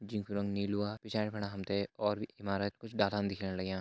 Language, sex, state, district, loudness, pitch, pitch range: Hindi, male, Uttarakhand, Tehri Garhwal, -36 LUFS, 100 Hz, 100-105 Hz